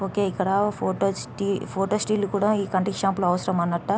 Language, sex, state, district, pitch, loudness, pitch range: Telugu, female, Andhra Pradesh, Guntur, 195 Hz, -24 LUFS, 185-205 Hz